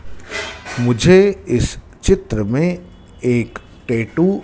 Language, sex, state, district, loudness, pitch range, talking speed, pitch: Hindi, male, Madhya Pradesh, Dhar, -17 LUFS, 110-175 Hz, 95 wpm, 125 Hz